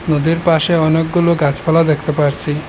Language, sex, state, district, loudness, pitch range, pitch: Bengali, male, Assam, Hailakandi, -14 LUFS, 150-165 Hz, 160 Hz